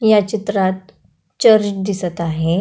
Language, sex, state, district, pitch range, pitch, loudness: Marathi, female, Maharashtra, Pune, 180-210 Hz, 195 Hz, -17 LUFS